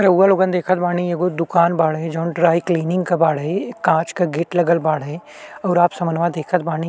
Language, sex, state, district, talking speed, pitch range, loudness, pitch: Bhojpuri, male, Uttar Pradesh, Gorakhpur, 200 wpm, 165-180 Hz, -18 LUFS, 170 Hz